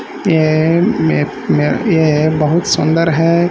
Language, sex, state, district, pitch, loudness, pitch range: Hindi, male, Maharashtra, Solapur, 160 Hz, -13 LUFS, 155-165 Hz